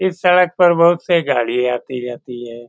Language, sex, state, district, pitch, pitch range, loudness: Hindi, male, Bihar, Saran, 140 Hz, 120-175 Hz, -15 LUFS